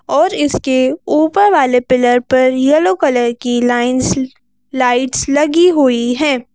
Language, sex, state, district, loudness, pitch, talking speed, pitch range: Hindi, female, Madhya Pradesh, Bhopal, -13 LUFS, 260 Hz, 120 wpm, 245-300 Hz